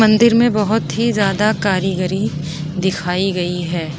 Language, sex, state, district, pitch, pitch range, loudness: Hindi, female, Uttar Pradesh, Budaun, 190 Hz, 175-215 Hz, -17 LUFS